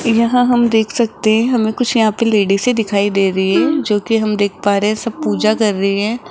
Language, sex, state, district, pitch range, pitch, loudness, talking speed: Hindi, female, Rajasthan, Jaipur, 205-235 Hz, 220 Hz, -15 LUFS, 245 wpm